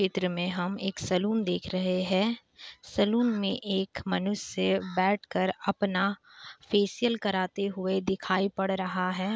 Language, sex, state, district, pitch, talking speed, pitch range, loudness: Hindi, female, Bihar, Kishanganj, 195 Hz, 135 wpm, 185-200 Hz, -29 LUFS